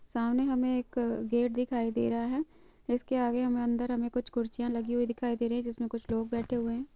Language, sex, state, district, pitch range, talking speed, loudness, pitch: Hindi, female, Andhra Pradesh, Chittoor, 235-245 Hz, 240 wpm, -31 LUFS, 240 Hz